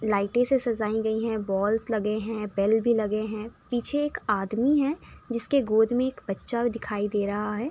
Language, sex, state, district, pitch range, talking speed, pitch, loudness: Hindi, female, Uttar Pradesh, Budaun, 210-240 Hz, 200 wpm, 220 Hz, -26 LUFS